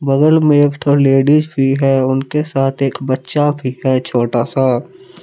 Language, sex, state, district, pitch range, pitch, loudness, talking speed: Hindi, male, Jharkhand, Palamu, 130-145 Hz, 135 Hz, -14 LUFS, 170 wpm